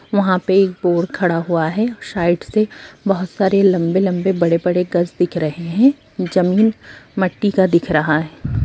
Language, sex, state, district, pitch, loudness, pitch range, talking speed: Hindi, female, Bihar, Gopalganj, 180 Hz, -17 LUFS, 170-195 Hz, 160 wpm